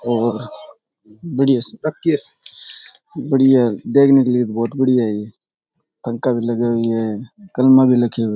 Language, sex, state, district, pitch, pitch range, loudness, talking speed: Rajasthani, male, Rajasthan, Churu, 125 Hz, 115-135 Hz, -17 LUFS, 150 wpm